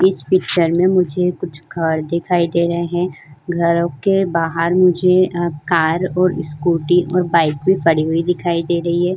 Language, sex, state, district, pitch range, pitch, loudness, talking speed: Hindi, female, Uttar Pradesh, Jyotiba Phule Nagar, 165-180 Hz, 170 Hz, -17 LUFS, 175 wpm